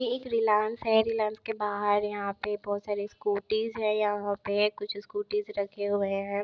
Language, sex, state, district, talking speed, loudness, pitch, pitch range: Hindi, female, Bihar, Begusarai, 170 wpm, -29 LUFS, 210 Hz, 205-220 Hz